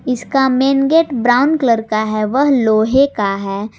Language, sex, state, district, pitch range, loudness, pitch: Hindi, female, Jharkhand, Garhwa, 215-275 Hz, -14 LUFS, 245 Hz